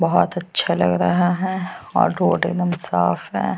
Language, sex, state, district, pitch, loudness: Hindi, female, Uttar Pradesh, Jyotiba Phule Nagar, 170 Hz, -20 LUFS